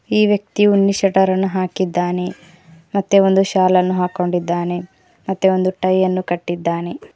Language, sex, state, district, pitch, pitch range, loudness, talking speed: Kannada, female, Karnataka, Koppal, 185 Hz, 175-195 Hz, -17 LUFS, 135 wpm